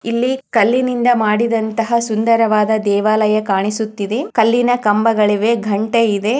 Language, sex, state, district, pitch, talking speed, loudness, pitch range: Kannada, female, Karnataka, Chamarajanagar, 225 Hz, 75 wpm, -15 LUFS, 215-235 Hz